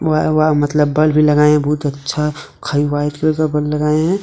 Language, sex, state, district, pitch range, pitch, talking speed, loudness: Hindi, male, Jharkhand, Deoghar, 150-155 Hz, 150 Hz, 255 wpm, -15 LUFS